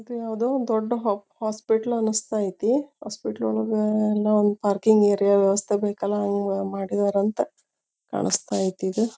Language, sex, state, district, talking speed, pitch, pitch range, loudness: Kannada, female, Karnataka, Bijapur, 125 wpm, 210 Hz, 200-220 Hz, -24 LUFS